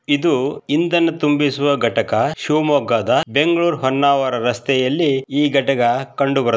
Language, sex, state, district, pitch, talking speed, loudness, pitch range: Kannada, male, Karnataka, Shimoga, 140 Hz, 110 wpm, -17 LUFS, 130-150 Hz